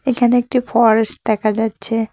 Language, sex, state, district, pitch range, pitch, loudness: Bengali, female, West Bengal, Cooch Behar, 220-245 Hz, 225 Hz, -16 LUFS